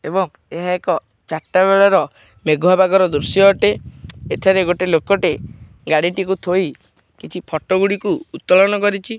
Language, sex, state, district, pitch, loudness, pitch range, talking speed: Odia, male, Odisha, Khordha, 190 Hz, -16 LUFS, 180-195 Hz, 125 wpm